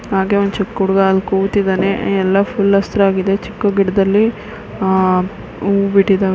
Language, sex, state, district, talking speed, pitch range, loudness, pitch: Kannada, female, Karnataka, Mysore, 140 wpm, 190-200 Hz, -15 LUFS, 195 Hz